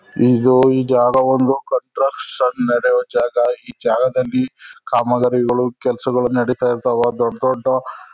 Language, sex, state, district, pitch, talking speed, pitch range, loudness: Kannada, male, Karnataka, Chamarajanagar, 125 Hz, 120 wpm, 120-130 Hz, -17 LUFS